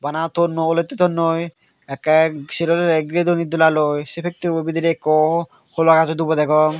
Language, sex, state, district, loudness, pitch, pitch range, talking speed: Chakma, male, Tripura, Dhalai, -18 LUFS, 165 Hz, 155-170 Hz, 150 wpm